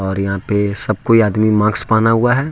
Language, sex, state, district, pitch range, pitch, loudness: Hindi, male, Jharkhand, Ranchi, 100-115 Hz, 110 Hz, -15 LUFS